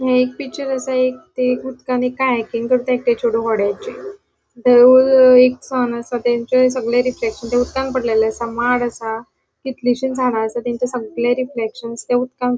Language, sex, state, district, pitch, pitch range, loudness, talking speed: Konkani, female, Goa, North and South Goa, 250 Hz, 235-255 Hz, -17 LUFS, 140 wpm